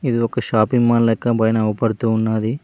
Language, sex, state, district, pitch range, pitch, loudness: Telugu, male, Telangana, Mahabubabad, 110-120 Hz, 115 Hz, -18 LUFS